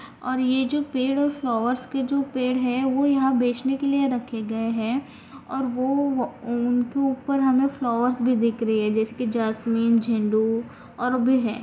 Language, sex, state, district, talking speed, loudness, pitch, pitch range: Hindi, female, Maharashtra, Aurangabad, 185 wpm, -23 LUFS, 250 Hz, 230-265 Hz